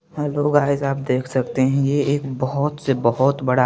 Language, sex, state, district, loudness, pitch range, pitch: Hindi, male, Chandigarh, Chandigarh, -20 LUFS, 130-145 Hz, 140 Hz